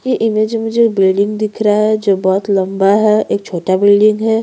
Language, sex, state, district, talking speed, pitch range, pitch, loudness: Hindi, female, Chhattisgarh, Sukma, 205 wpm, 195-220 Hz, 210 Hz, -13 LUFS